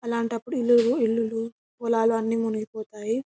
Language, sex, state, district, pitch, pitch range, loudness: Telugu, female, Telangana, Karimnagar, 230 Hz, 225-235 Hz, -25 LUFS